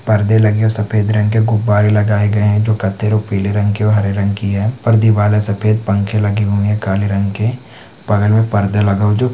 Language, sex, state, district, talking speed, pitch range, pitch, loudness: Hindi, male, Chhattisgarh, Korba, 245 wpm, 100-110 Hz, 105 Hz, -14 LUFS